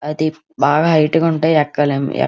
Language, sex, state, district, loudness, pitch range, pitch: Telugu, female, Andhra Pradesh, Krishna, -16 LUFS, 145-160 Hz, 155 Hz